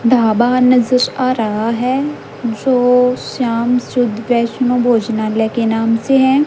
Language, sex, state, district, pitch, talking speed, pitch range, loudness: Hindi, female, Haryana, Charkhi Dadri, 245 Hz, 130 wpm, 225-250 Hz, -14 LUFS